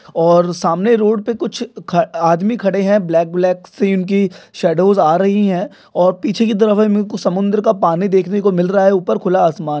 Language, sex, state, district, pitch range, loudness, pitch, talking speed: Hindi, male, Maharashtra, Nagpur, 180-210 Hz, -15 LUFS, 195 Hz, 210 wpm